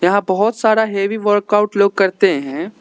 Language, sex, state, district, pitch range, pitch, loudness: Hindi, male, Arunachal Pradesh, Lower Dibang Valley, 200-220 Hz, 210 Hz, -16 LUFS